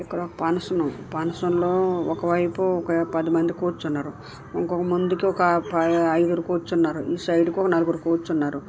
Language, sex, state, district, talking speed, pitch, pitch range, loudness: Telugu, female, Andhra Pradesh, Visakhapatnam, 115 wpm, 170 Hz, 165-175 Hz, -23 LUFS